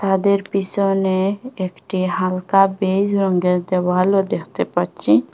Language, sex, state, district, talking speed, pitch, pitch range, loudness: Bengali, female, Assam, Hailakandi, 100 wpm, 190 Hz, 185-195 Hz, -19 LUFS